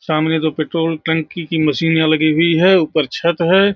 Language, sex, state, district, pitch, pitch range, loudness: Hindi, male, Bihar, Saharsa, 160 Hz, 155-170 Hz, -15 LUFS